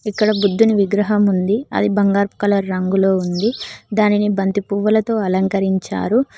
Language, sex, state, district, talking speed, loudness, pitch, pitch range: Telugu, female, Telangana, Mahabubabad, 120 wpm, -17 LUFS, 205 Hz, 195-215 Hz